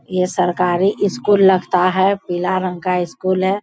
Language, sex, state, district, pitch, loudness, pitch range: Hindi, female, Bihar, Bhagalpur, 185 Hz, -17 LUFS, 180-190 Hz